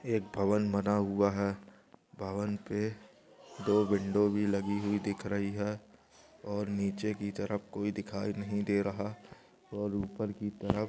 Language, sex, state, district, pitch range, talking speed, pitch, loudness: Hindi, male, Andhra Pradesh, Anantapur, 100-105 Hz, 155 wpm, 100 Hz, -33 LUFS